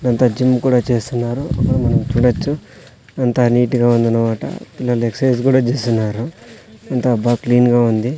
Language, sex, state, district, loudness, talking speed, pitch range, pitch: Telugu, male, Andhra Pradesh, Sri Satya Sai, -16 LUFS, 140 wpm, 120-125 Hz, 120 Hz